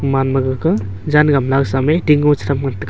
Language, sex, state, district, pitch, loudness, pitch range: Wancho, male, Arunachal Pradesh, Longding, 135 Hz, -15 LUFS, 130-150 Hz